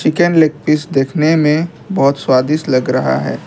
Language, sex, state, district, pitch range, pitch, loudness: Hindi, male, Assam, Kamrup Metropolitan, 130-160 Hz, 150 Hz, -14 LUFS